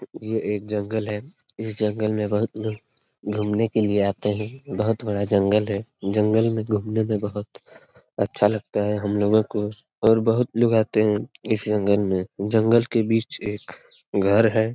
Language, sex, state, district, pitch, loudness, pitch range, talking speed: Hindi, male, Bihar, Lakhisarai, 105 Hz, -23 LUFS, 105-110 Hz, 175 wpm